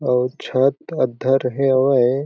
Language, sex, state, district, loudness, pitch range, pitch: Chhattisgarhi, male, Chhattisgarh, Jashpur, -19 LUFS, 125-135 Hz, 130 Hz